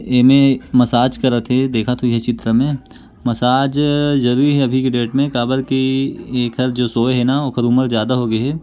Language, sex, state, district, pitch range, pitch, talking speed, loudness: Chhattisgarhi, male, Chhattisgarh, Korba, 120-135 Hz, 125 Hz, 195 wpm, -16 LUFS